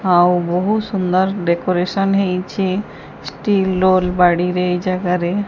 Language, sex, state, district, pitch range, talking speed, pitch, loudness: Odia, female, Odisha, Sambalpur, 180-195 Hz, 110 wpm, 185 Hz, -17 LUFS